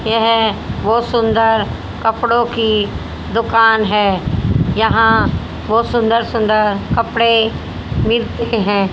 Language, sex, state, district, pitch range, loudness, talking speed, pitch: Hindi, female, Haryana, Jhajjar, 215-230 Hz, -15 LUFS, 95 wpm, 225 Hz